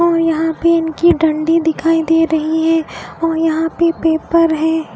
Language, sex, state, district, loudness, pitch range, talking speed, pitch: Hindi, female, Odisha, Khordha, -14 LUFS, 320-330 Hz, 170 wpm, 325 Hz